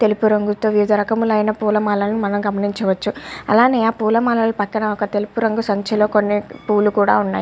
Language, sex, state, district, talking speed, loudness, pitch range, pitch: Telugu, female, Andhra Pradesh, Guntur, 160 wpm, -18 LUFS, 205-220 Hz, 210 Hz